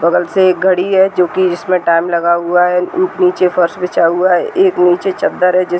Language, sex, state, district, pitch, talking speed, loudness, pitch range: Hindi, female, Uttar Pradesh, Deoria, 180 Hz, 225 wpm, -12 LUFS, 175-185 Hz